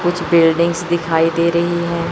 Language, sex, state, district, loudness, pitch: Hindi, male, Chandigarh, Chandigarh, -16 LUFS, 170 Hz